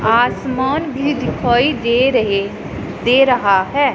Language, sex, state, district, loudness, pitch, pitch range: Hindi, female, Punjab, Pathankot, -15 LUFS, 250 Hz, 235-270 Hz